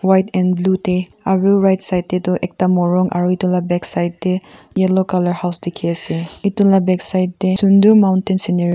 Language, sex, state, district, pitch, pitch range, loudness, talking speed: Nagamese, female, Nagaland, Kohima, 185 Hz, 180-190 Hz, -16 LUFS, 210 wpm